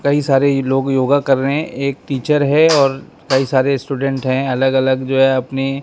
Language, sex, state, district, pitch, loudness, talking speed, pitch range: Hindi, male, Maharashtra, Mumbai Suburban, 135 Hz, -15 LUFS, 205 wpm, 135-140 Hz